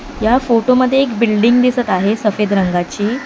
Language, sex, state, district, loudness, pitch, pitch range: Marathi, female, Maharashtra, Mumbai Suburban, -14 LUFS, 230 Hz, 210-250 Hz